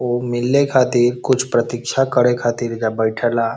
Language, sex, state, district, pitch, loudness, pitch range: Bhojpuri, male, Bihar, Saran, 120 Hz, -17 LUFS, 120-125 Hz